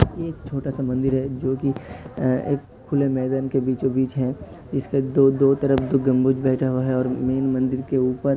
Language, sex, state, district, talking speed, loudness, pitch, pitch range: Hindi, male, Uttar Pradesh, Hamirpur, 200 wpm, -22 LUFS, 130 Hz, 130-135 Hz